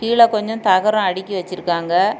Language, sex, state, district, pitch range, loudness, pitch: Tamil, female, Tamil Nadu, Kanyakumari, 185-220 Hz, -17 LUFS, 195 Hz